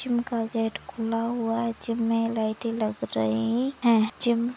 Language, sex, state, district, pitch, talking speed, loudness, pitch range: Hindi, female, Maharashtra, Nagpur, 230 Hz, 185 wpm, -26 LUFS, 225-235 Hz